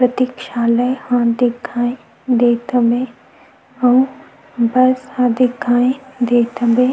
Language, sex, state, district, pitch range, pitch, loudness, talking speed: Chhattisgarhi, female, Chhattisgarh, Sukma, 240-255 Hz, 245 Hz, -16 LUFS, 95 wpm